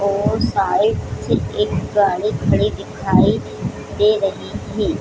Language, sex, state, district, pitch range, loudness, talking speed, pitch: Hindi, female, Chhattisgarh, Bilaspur, 145-205 Hz, -18 LUFS, 120 wpm, 195 Hz